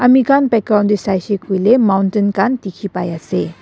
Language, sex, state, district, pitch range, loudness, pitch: Nagamese, female, Nagaland, Dimapur, 195-230 Hz, -15 LUFS, 205 Hz